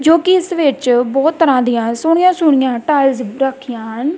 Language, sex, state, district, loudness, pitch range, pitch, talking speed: Punjabi, female, Punjab, Kapurthala, -14 LUFS, 245-320 Hz, 270 Hz, 170 wpm